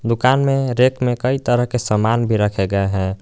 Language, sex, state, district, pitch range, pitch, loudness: Hindi, male, Jharkhand, Garhwa, 105-130 Hz, 120 Hz, -17 LUFS